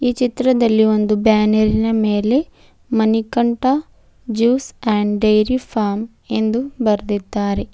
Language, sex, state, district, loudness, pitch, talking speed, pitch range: Kannada, female, Karnataka, Bidar, -17 LUFS, 225 Hz, 95 wpm, 215-245 Hz